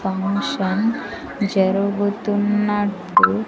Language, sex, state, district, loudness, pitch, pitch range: Telugu, female, Andhra Pradesh, Sri Satya Sai, -20 LUFS, 205 Hz, 195-210 Hz